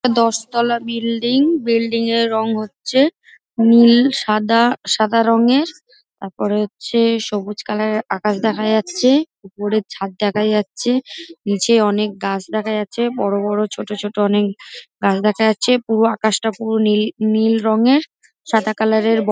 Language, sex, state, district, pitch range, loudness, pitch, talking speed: Bengali, female, West Bengal, Dakshin Dinajpur, 210-235 Hz, -17 LUFS, 220 Hz, 150 wpm